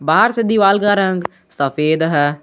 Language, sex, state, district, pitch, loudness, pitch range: Hindi, male, Jharkhand, Garhwa, 165 Hz, -15 LUFS, 150-200 Hz